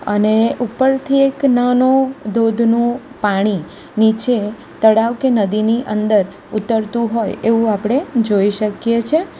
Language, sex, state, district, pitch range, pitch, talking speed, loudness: Gujarati, female, Gujarat, Valsad, 215-250 Hz, 230 Hz, 115 wpm, -16 LUFS